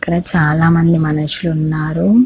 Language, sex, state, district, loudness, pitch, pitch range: Telugu, female, Andhra Pradesh, Krishna, -13 LUFS, 165 Hz, 155-170 Hz